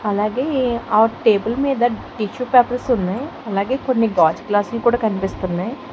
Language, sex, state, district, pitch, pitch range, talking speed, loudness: Telugu, female, Telangana, Hyderabad, 230 Hz, 205-250 Hz, 140 wpm, -19 LUFS